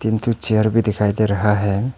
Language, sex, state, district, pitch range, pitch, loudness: Hindi, male, Arunachal Pradesh, Papum Pare, 105-110 Hz, 110 Hz, -18 LUFS